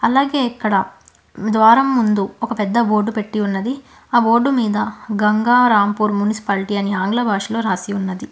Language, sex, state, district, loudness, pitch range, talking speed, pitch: Telugu, female, Telangana, Hyderabad, -17 LUFS, 205-235 Hz, 135 wpm, 215 Hz